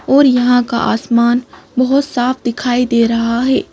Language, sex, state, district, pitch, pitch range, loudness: Hindi, female, Madhya Pradesh, Bhopal, 245 Hz, 235-255 Hz, -14 LUFS